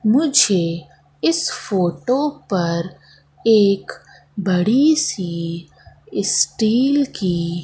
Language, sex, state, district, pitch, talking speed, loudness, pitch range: Hindi, female, Madhya Pradesh, Katni, 190 Hz, 70 wpm, -18 LUFS, 170-230 Hz